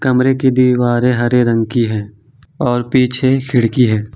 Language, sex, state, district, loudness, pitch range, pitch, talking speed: Hindi, male, Jharkhand, Ranchi, -14 LUFS, 120-130 Hz, 125 Hz, 160 wpm